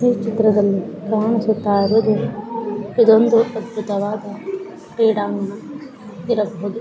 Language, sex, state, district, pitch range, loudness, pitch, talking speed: Kannada, female, Karnataka, Mysore, 205-230 Hz, -18 LUFS, 220 Hz, 70 wpm